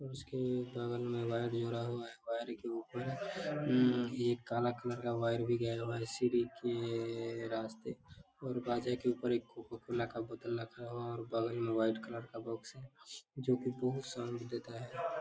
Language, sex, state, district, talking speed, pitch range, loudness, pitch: Hindi, male, Bihar, Darbhanga, 190 wpm, 115-125 Hz, -38 LUFS, 120 Hz